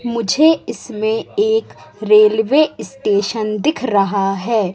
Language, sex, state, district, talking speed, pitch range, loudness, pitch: Hindi, female, Madhya Pradesh, Katni, 100 wpm, 210-260 Hz, -16 LUFS, 220 Hz